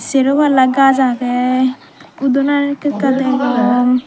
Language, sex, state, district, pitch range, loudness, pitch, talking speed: Chakma, female, Tripura, Dhalai, 250-275 Hz, -14 LUFS, 265 Hz, 120 wpm